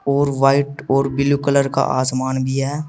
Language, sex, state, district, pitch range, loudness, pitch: Hindi, male, Uttar Pradesh, Saharanpur, 135-140 Hz, -18 LUFS, 140 Hz